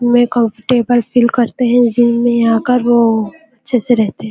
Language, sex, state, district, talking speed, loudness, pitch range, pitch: Hindi, female, Chhattisgarh, Bilaspur, 180 wpm, -13 LUFS, 230-245 Hz, 240 Hz